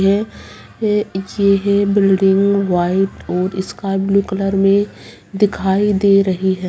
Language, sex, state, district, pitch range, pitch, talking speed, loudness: Hindi, female, Bihar, Purnia, 190-200 Hz, 195 Hz, 115 wpm, -16 LUFS